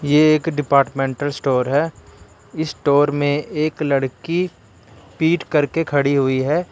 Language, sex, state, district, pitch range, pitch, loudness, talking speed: Hindi, male, Karnataka, Bangalore, 135-155 Hz, 145 Hz, -19 LUFS, 135 wpm